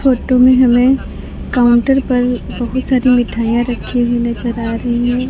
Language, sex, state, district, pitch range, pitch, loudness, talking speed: Hindi, female, Uttar Pradesh, Lalitpur, 240-255 Hz, 245 Hz, -14 LUFS, 160 wpm